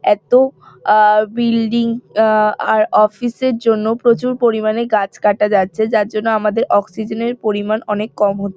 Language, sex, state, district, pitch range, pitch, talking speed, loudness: Bengali, female, West Bengal, North 24 Parganas, 210-235 Hz, 220 Hz, 160 wpm, -15 LUFS